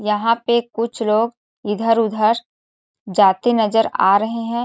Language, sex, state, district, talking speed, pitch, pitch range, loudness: Hindi, female, Chhattisgarh, Balrampur, 130 wpm, 225 Hz, 210-235 Hz, -18 LUFS